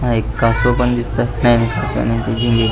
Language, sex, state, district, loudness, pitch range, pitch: Marathi, male, Maharashtra, Pune, -16 LUFS, 115-120 Hz, 115 Hz